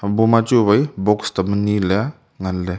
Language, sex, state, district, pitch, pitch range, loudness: Wancho, male, Arunachal Pradesh, Longding, 105 Hz, 95-115 Hz, -18 LUFS